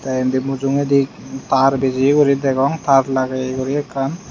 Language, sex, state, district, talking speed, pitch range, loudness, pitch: Chakma, male, Tripura, Unakoti, 155 wpm, 130-140 Hz, -17 LUFS, 135 Hz